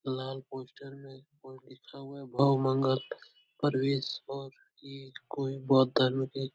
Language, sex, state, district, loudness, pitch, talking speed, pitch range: Hindi, male, Uttar Pradesh, Etah, -30 LUFS, 135 Hz, 145 wpm, 130-135 Hz